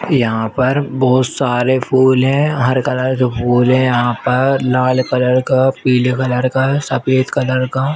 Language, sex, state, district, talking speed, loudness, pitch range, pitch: Hindi, female, Uttar Pradesh, Etah, 165 wpm, -14 LUFS, 125-130 Hz, 130 Hz